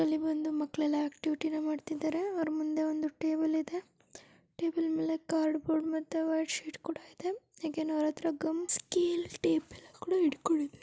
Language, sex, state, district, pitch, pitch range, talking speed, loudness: Kannada, female, Karnataka, Dakshina Kannada, 315 Hz, 310-330 Hz, 50 wpm, -33 LUFS